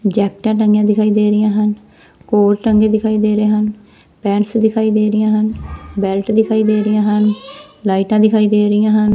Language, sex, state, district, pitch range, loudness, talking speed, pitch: Punjabi, female, Punjab, Fazilka, 210-215 Hz, -14 LUFS, 175 wpm, 215 Hz